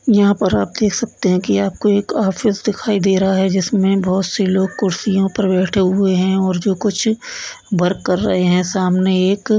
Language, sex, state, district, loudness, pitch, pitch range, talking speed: Hindi, female, Chhattisgarh, Bastar, -16 LUFS, 195 Hz, 185-205 Hz, 205 wpm